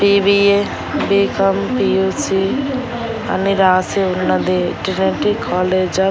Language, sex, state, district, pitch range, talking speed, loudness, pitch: Telugu, female, Andhra Pradesh, Annamaya, 190-200 Hz, 90 wpm, -16 LUFS, 195 Hz